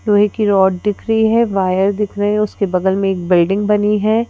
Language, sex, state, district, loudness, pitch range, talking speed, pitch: Hindi, female, Madhya Pradesh, Bhopal, -15 LUFS, 190-210 Hz, 235 wpm, 205 Hz